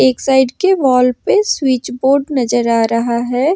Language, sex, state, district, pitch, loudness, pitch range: Hindi, female, Jharkhand, Ranchi, 260 Hz, -14 LUFS, 240-280 Hz